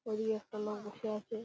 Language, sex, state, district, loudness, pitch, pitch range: Bengali, male, West Bengal, Purulia, -39 LUFS, 215 Hz, 210-220 Hz